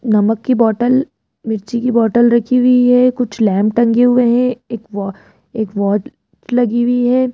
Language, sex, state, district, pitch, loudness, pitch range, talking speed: Hindi, female, Rajasthan, Jaipur, 240 Hz, -14 LUFS, 220-245 Hz, 170 wpm